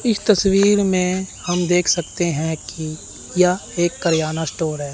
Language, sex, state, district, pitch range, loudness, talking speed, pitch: Hindi, male, Chandigarh, Chandigarh, 160-190 Hz, -19 LUFS, 160 wpm, 175 Hz